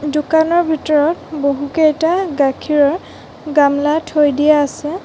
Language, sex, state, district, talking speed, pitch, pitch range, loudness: Assamese, female, Assam, Sonitpur, 95 wpm, 300 Hz, 290-320 Hz, -15 LUFS